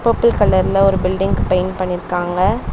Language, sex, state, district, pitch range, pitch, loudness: Tamil, female, Tamil Nadu, Chennai, 180-195 Hz, 185 Hz, -16 LUFS